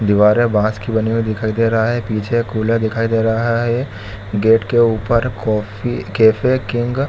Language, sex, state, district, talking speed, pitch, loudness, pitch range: Hindi, male, Chhattisgarh, Bilaspur, 185 wpm, 115 Hz, -16 LUFS, 110-120 Hz